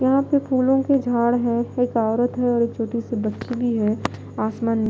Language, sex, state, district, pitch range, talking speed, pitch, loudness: Hindi, female, Bihar, Katihar, 230-255 Hz, 220 wpm, 240 Hz, -21 LUFS